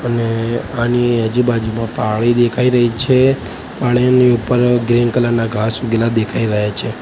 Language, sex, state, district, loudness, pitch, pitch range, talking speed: Gujarati, male, Gujarat, Gandhinagar, -15 LUFS, 120 Hz, 115-125 Hz, 145 wpm